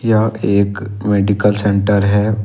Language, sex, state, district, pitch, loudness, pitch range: Hindi, male, Jharkhand, Ranchi, 105 Hz, -15 LUFS, 100-105 Hz